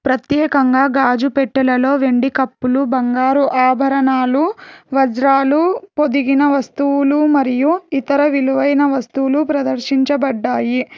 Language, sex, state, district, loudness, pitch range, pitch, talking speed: Telugu, female, Telangana, Hyderabad, -15 LUFS, 265-285 Hz, 275 Hz, 80 wpm